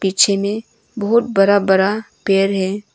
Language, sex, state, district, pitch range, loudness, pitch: Hindi, female, Arunachal Pradesh, Longding, 195-210 Hz, -16 LUFS, 200 Hz